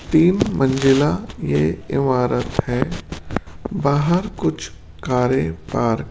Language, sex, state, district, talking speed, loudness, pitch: Hindi, male, Rajasthan, Jaipur, 100 wpm, -20 LUFS, 130 Hz